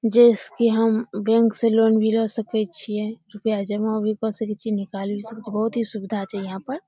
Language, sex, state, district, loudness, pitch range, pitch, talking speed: Maithili, female, Bihar, Samastipur, -22 LUFS, 210-225 Hz, 220 Hz, 235 wpm